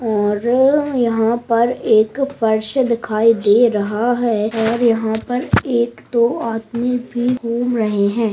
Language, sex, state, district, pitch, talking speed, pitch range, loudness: Hindi, female, Bihar, Saharsa, 235 Hz, 130 wpm, 220-245 Hz, -17 LUFS